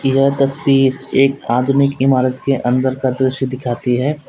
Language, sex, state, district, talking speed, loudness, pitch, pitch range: Hindi, male, Uttar Pradesh, Lalitpur, 170 wpm, -16 LUFS, 135 Hz, 130-135 Hz